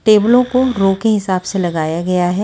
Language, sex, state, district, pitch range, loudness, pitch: Hindi, female, Delhi, New Delhi, 180-220 Hz, -15 LUFS, 195 Hz